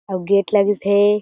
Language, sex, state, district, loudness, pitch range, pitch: Chhattisgarhi, female, Chhattisgarh, Jashpur, -17 LUFS, 200-205 Hz, 200 Hz